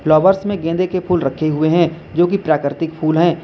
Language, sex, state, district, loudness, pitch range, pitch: Hindi, male, Uttar Pradesh, Lalitpur, -16 LUFS, 155-180 Hz, 165 Hz